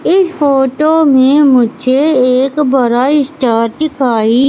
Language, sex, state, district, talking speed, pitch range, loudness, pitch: Hindi, female, Madhya Pradesh, Katni, 105 wpm, 255-295 Hz, -11 LUFS, 270 Hz